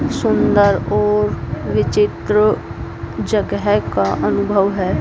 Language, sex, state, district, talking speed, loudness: Hindi, female, Haryana, Jhajjar, 85 wpm, -17 LUFS